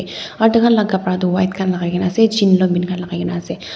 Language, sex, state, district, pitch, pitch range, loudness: Nagamese, female, Nagaland, Dimapur, 185 Hz, 180-200 Hz, -16 LUFS